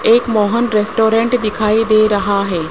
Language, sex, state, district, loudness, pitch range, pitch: Hindi, male, Rajasthan, Jaipur, -14 LUFS, 210-225 Hz, 215 Hz